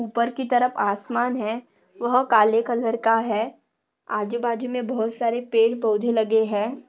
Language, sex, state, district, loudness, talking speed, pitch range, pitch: Hindi, female, Maharashtra, Nagpur, -23 LUFS, 165 wpm, 220-245 Hz, 230 Hz